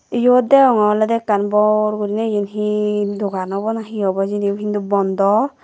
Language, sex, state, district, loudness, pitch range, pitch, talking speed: Chakma, female, Tripura, West Tripura, -17 LUFS, 205-220 Hz, 210 Hz, 170 wpm